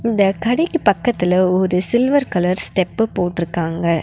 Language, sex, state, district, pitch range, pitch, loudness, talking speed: Tamil, female, Tamil Nadu, Nilgiris, 180-230 Hz, 190 Hz, -17 LUFS, 120 wpm